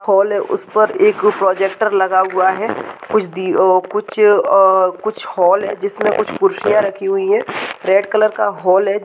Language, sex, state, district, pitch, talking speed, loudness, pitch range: Hindi, female, Bihar, Saharsa, 205 Hz, 180 wpm, -15 LUFS, 190-215 Hz